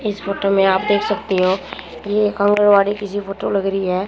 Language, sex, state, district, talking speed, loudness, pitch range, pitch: Hindi, female, Haryana, Jhajjar, 220 wpm, -17 LUFS, 195-205 Hz, 200 Hz